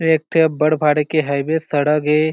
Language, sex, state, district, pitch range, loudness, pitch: Chhattisgarhi, male, Chhattisgarh, Jashpur, 150-160 Hz, -17 LUFS, 155 Hz